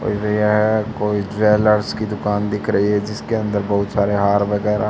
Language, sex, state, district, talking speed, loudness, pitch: Hindi, male, Haryana, Charkhi Dadri, 185 wpm, -18 LUFS, 105 Hz